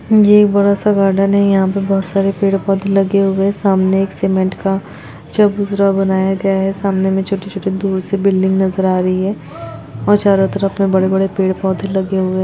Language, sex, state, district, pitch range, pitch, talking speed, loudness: Hindi, female, Chhattisgarh, Rajnandgaon, 190-195 Hz, 195 Hz, 205 wpm, -14 LUFS